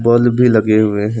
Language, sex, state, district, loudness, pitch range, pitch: Hindi, male, Jharkhand, Deoghar, -13 LUFS, 110-120 Hz, 110 Hz